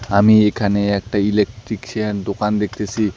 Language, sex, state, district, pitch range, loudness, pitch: Bengali, male, West Bengal, Alipurduar, 100-110 Hz, -18 LUFS, 105 Hz